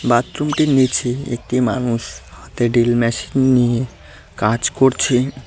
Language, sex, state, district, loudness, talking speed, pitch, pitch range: Bengali, male, West Bengal, Cooch Behar, -17 LUFS, 110 wpm, 125 Hz, 120-130 Hz